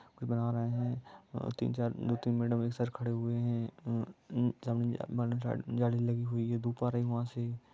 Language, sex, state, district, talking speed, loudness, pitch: Hindi, male, Bihar, East Champaran, 170 wpm, -35 LUFS, 120 Hz